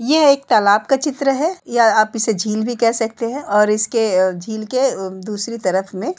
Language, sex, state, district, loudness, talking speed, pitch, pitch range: Hindi, female, Uttar Pradesh, Jalaun, -17 LUFS, 235 wpm, 225 Hz, 210-265 Hz